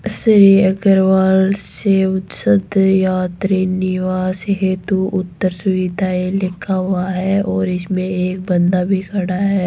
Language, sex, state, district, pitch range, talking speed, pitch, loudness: Hindi, female, Rajasthan, Jaipur, 185-195 Hz, 110 wpm, 190 Hz, -16 LUFS